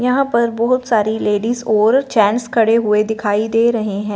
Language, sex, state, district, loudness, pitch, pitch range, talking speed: Hindi, female, Punjab, Fazilka, -16 LUFS, 225 Hz, 210-235 Hz, 190 wpm